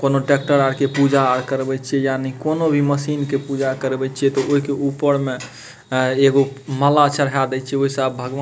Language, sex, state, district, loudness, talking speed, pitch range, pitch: Maithili, male, Bihar, Madhepura, -18 LUFS, 205 wpm, 130-140 Hz, 135 Hz